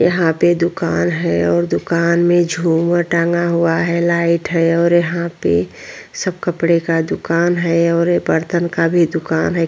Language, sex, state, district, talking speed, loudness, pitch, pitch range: Hindi, female, Uttarakhand, Tehri Garhwal, 175 wpm, -16 LUFS, 170 Hz, 165-175 Hz